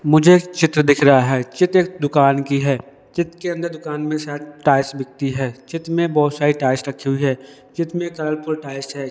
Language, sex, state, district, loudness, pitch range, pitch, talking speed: Hindi, male, Madhya Pradesh, Dhar, -18 LUFS, 135-165 Hz, 145 Hz, 210 wpm